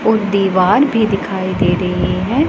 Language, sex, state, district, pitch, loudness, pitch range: Hindi, female, Punjab, Pathankot, 200 Hz, -15 LUFS, 185-220 Hz